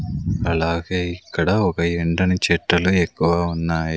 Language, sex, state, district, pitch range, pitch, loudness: Telugu, male, Andhra Pradesh, Sri Satya Sai, 85-90 Hz, 85 Hz, -20 LUFS